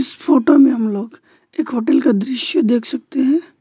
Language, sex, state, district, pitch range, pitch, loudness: Hindi, male, West Bengal, Alipurduar, 250-310 Hz, 280 Hz, -16 LUFS